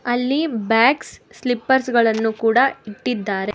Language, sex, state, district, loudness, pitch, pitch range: Kannada, female, Karnataka, Bangalore, -19 LUFS, 235 Hz, 225-260 Hz